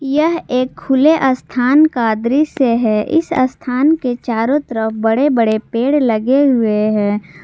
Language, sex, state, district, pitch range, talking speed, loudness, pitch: Hindi, female, Jharkhand, Garhwa, 225-285 Hz, 155 wpm, -15 LUFS, 250 Hz